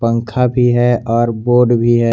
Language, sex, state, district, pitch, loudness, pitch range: Hindi, male, Jharkhand, Garhwa, 120 Hz, -13 LUFS, 115-120 Hz